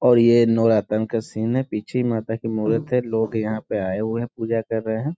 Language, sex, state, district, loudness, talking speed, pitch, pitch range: Hindi, male, Bihar, Sitamarhi, -22 LUFS, 220 wpm, 115 Hz, 110-120 Hz